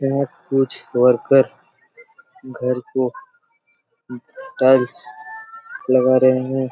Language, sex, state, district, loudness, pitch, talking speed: Hindi, male, Chhattisgarh, Raigarh, -18 LUFS, 135 Hz, 80 wpm